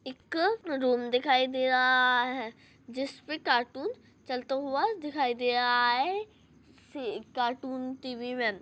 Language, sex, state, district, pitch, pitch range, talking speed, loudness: Hindi, female, Chhattisgarh, Rajnandgaon, 260 Hz, 245-280 Hz, 120 wpm, -29 LUFS